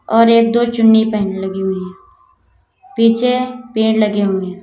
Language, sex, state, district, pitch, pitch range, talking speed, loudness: Hindi, female, Uttar Pradesh, Lalitpur, 220 Hz, 195-230 Hz, 155 wpm, -14 LUFS